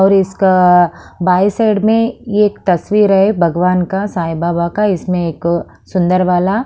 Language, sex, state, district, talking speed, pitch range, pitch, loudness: Hindi, female, Haryana, Charkhi Dadri, 155 wpm, 175-205 Hz, 185 Hz, -13 LUFS